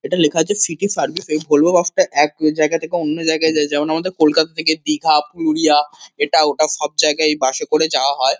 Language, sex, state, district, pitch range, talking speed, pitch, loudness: Bengali, male, West Bengal, Kolkata, 150-160 Hz, 230 wpm, 155 Hz, -16 LUFS